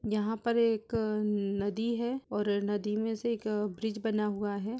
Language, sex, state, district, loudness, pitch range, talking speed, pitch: Hindi, female, Uttar Pradesh, Budaun, -32 LUFS, 205-225 Hz, 185 wpm, 215 Hz